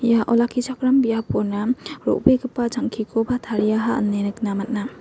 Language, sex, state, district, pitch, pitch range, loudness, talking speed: Garo, female, Meghalaya, West Garo Hills, 235 Hz, 215-250 Hz, -21 LUFS, 110 wpm